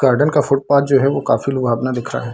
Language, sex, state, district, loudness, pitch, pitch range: Hindi, male, Bihar, Samastipur, -16 LUFS, 135 Hz, 125-140 Hz